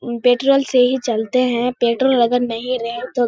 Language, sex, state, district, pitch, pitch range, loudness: Hindi, female, Bihar, Kishanganj, 245 Hz, 235-255 Hz, -17 LUFS